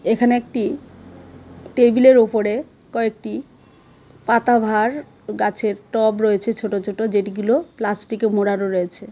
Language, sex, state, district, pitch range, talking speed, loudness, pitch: Bengali, female, Tripura, West Tripura, 210-235 Hz, 100 wpm, -19 LUFS, 220 Hz